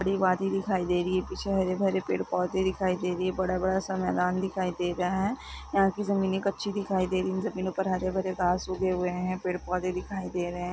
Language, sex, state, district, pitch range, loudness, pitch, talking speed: Hindi, female, Chhattisgarh, Korba, 180-190 Hz, -29 LUFS, 185 Hz, 270 wpm